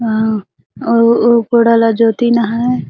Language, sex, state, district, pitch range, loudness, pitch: Surgujia, female, Chhattisgarh, Sarguja, 225-235 Hz, -12 LUFS, 230 Hz